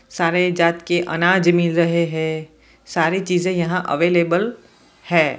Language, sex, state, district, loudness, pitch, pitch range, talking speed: Hindi, male, Jharkhand, Jamtara, -18 LUFS, 170 Hz, 170-180 Hz, 135 wpm